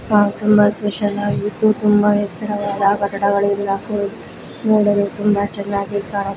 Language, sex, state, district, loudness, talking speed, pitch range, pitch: Kannada, female, Karnataka, Raichur, -18 LUFS, 115 wpm, 200-210 Hz, 205 Hz